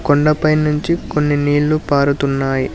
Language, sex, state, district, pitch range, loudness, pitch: Telugu, male, Telangana, Hyderabad, 140-150 Hz, -16 LUFS, 145 Hz